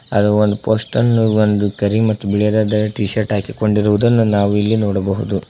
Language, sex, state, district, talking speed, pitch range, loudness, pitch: Kannada, male, Karnataka, Koppal, 150 wpm, 100-110 Hz, -16 LUFS, 105 Hz